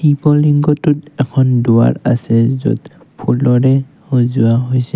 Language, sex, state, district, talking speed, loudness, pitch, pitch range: Assamese, male, Assam, Kamrup Metropolitan, 110 wpm, -13 LUFS, 130 Hz, 125-145 Hz